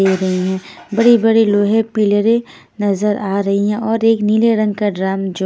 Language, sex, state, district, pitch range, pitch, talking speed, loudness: Hindi, female, Haryana, Rohtak, 195-225 Hz, 210 Hz, 175 wpm, -15 LUFS